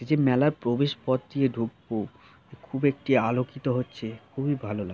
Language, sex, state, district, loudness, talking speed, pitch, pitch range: Bengali, male, West Bengal, Jhargram, -27 LUFS, 145 wpm, 130 Hz, 115-140 Hz